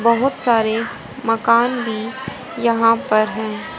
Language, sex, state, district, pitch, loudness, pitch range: Hindi, female, Haryana, Rohtak, 230 Hz, -18 LUFS, 220-240 Hz